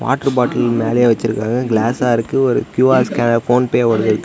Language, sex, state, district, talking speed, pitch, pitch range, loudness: Tamil, male, Tamil Nadu, Namakkal, 155 wpm, 120 Hz, 115-125 Hz, -15 LUFS